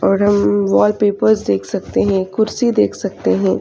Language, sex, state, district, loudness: Hindi, female, Chhattisgarh, Raigarh, -16 LUFS